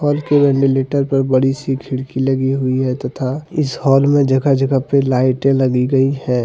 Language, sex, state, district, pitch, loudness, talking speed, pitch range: Hindi, male, Jharkhand, Deoghar, 135 Hz, -16 LUFS, 185 wpm, 130-140 Hz